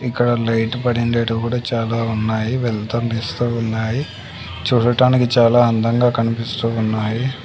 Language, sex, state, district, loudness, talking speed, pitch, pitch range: Telugu, male, Andhra Pradesh, Sri Satya Sai, -18 LUFS, 105 wpm, 115 Hz, 115-120 Hz